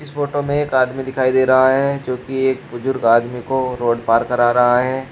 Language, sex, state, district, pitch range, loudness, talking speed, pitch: Hindi, male, Uttar Pradesh, Shamli, 125-135 Hz, -17 LUFS, 220 wpm, 130 Hz